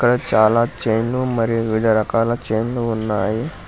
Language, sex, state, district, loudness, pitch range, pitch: Telugu, male, Telangana, Hyderabad, -19 LUFS, 110-120 Hz, 115 Hz